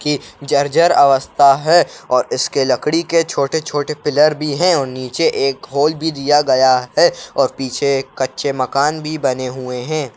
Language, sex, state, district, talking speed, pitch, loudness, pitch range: Kumaoni, male, Uttarakhand, Uttarkashi, 175 wpm, 140 Hz, -16 LUFS, 130-155 Hz